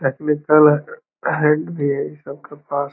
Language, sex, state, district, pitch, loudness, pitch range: Hindi, male, Bihar, Lakhisarai, 150 Hz, -18 LUFS, 140-150 Hz